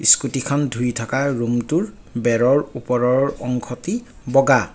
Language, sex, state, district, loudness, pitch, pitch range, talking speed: Assamese, male, Assam, Kamrup Metropolitan, -20 LUFS, 125 Hz, 120-140 Hz, 100 wpm